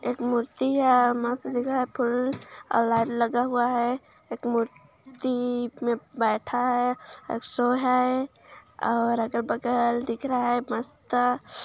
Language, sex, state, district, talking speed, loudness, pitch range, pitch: Hindi, female, Chhattisgarh, Kabirdham, 135 wpm, -26 LUFS, 235-250 Hz, 245 Hz